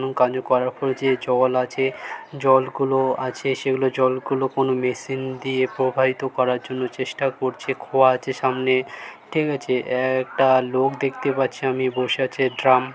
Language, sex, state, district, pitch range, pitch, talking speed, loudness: Bengali, male, West Bengal, Dakshin Dinajpur, 130-135 Hz, 130 Hz, 150 wpm, -22 LUFS